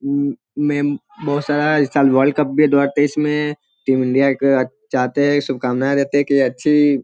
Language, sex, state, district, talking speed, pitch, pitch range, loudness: Hindi, male, Bihar, Sitamarhi, 205 wpm, 145 Hz, 135-150 Hz, -17 LUFS